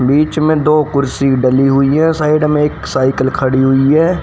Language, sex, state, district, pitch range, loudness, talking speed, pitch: Hindi, male, Haryana, Rohtak, 135-155 Hz, -12 LUFS, 200 wpm, 140 Hz